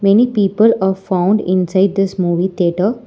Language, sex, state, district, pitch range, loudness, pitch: English, female, Telangana, Hyderabad, 185-205 Hz, -15 LUFS, 190 Hz